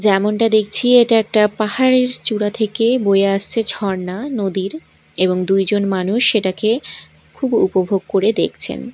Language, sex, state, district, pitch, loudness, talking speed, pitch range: Bengali, female, Odisha, Malkangiri, 210 Hz, -16 LUFS, 130 wpm, 195-230 Hz